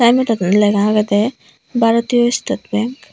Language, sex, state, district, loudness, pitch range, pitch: Chakma, female, Tripura, Unakoti, -16 LUFS, 210-240 Hz, 230 Hz